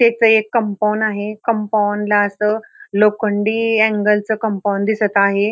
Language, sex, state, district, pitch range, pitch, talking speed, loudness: Marathi, female, Maharashtra, Pune, 205-220 Hz, 210 Hz, 150 wpm, -17 LUFS